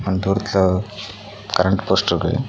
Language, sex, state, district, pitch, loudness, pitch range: Tamil, male, Tamil Nadu, Nilgiris, 100 Hz, -19 LUFS, 95-105 Hz